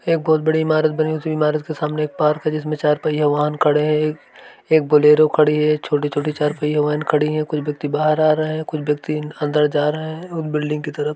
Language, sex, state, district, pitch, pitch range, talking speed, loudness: Hindi, male, Uttar Pradesh, Varanasi, 150 Hz, 150-155 Hz, 265 wpm, -19 LUFS